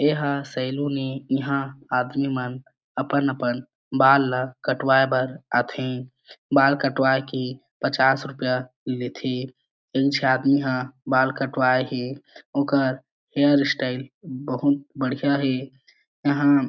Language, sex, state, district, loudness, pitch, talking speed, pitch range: Chhattisgarhi, male, Chhattisgarh, Jashpur, -23 LUFS, 135 Hz, 115 wpm, 130-140 Hz